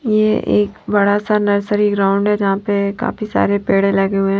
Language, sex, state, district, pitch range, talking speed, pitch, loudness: Hindi, female, Haryana, Jhajjar, 195-210 Hz, 190 wpm, 205 Hz, -16 LUFS